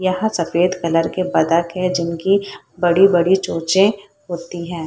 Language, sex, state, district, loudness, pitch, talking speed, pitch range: Hindi, female, Bihar, Purnia, -17 LUFS, 180 Hz, 135 wpm, 170-190 Hz